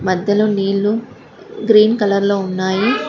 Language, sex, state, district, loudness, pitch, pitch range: Telugu, female, Telangana, Hyderabad, -15 LUFS, 200 Hz, 195-215 Hz